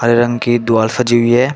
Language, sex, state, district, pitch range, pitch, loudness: Hindi, male, Uttar Pradesh, Shamli, 115-120 Hz, 120 Hz, -13 LUFS